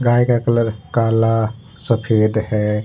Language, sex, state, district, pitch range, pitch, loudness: Hindi, male, Jharkhand, Ranchi, 110-120 Hz, 115 Hz, -17 LUFS